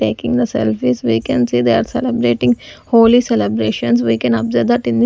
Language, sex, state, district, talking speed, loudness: English, female, Punjab, Fazilka, 200 wpm, -15 LUFS